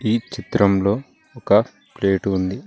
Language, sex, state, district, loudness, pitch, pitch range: Telugu, male, Telangana, Mahabubabad, -20 LUFS, 100 Hz, 95-115 Hz